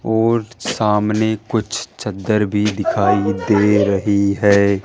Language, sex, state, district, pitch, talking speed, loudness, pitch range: Hindi, male, Rajasthan, Jaipur, 105 Hz, 110 wpm, -17 LUFS, 100-110 Hz